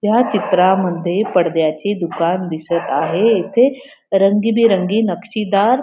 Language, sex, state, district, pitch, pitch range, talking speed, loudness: Marathi, female, Maharashtra, Pune, 195 Hz, 175-225 Hz, 105 wpm, -16 LUFS